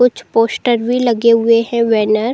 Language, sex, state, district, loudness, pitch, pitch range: Hindi, female, Uttar Pradesh, Jalaun, -14 LUFS, 230 Hz, 230-240 Hz